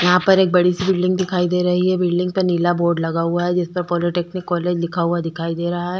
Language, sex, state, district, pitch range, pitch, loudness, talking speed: Hindi, female, Goa, North and South Goa, 175-180 Hz, 175 Hz, -19 LUFS, 270 wpm